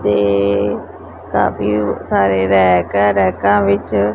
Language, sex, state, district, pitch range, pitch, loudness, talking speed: Punjabi, male, Punjab, Pathankot, 95-100 Hz, 100 Hz, -15 LUFS, 100 wpm